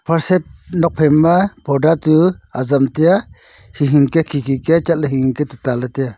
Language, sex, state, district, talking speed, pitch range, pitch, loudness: Wancho, male, Arunachal Pradesh, Longding, 245 wpm, 135-165 Hz, 155 Hz, -15 LUFS